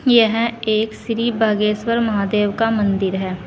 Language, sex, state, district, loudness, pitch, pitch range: Hindi, female, Uttar Pradesh, Saharanpur, -18 LUFS, 220 Hz, 205-230 Hz